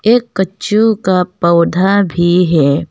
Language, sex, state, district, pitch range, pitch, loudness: Hindi, female, Arunachal Pradesh, Longding, 170-210 Hz, 185 Hz, -12 LUFS